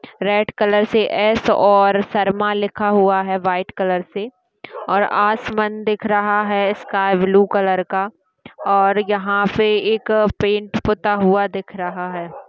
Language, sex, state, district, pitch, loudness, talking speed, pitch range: Hindi, female, Uttar Pradesh, Hamirpur, 205 Hz, -17 LUFS, 150 wpm, 195-215 Hz